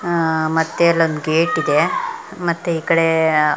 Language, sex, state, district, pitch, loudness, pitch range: Kannada, female, Karnataka, Belgaum, 165 Hz, -17 LUFS, 160-170 Hz